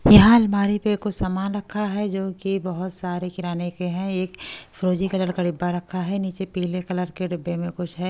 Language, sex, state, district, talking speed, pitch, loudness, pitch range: Hindi, female, Delhi, New Delhi, 215 wpm, 185 Hz, -23 LUFS, 180-195 Hz